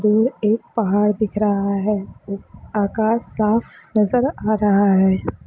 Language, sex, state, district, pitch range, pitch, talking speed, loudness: Hindi, female, Chhattisgarh, Sukma, 200-220 Hz, 210 Hz, 130 wpm, -19 LUFS